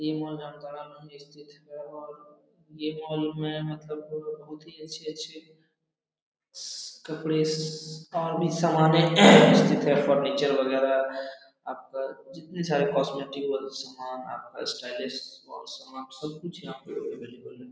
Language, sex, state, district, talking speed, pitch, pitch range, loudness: Hindi, male, Jharkhand, Jamtara, 135 wpm, 155 Hz, 145-155 Hz, -25 LUFS